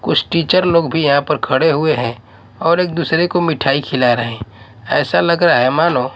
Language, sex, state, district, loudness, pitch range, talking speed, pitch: Hindi, male, Odisha, Malkangiri, -15 LUFS, 120-170 Hz, 215 wpm, 150 Hz